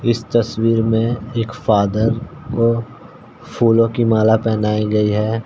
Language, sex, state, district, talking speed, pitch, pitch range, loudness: Hindi, male, Uttar Pradesh, Ghazipur, 130 wpm, 115 Hz, 110-115 Hz, -17 LUFS